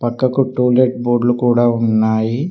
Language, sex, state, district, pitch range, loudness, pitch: Telugu, male, Telangana, Mahabubabad, 120-125 Hz, -15 LUFS, 120 Hz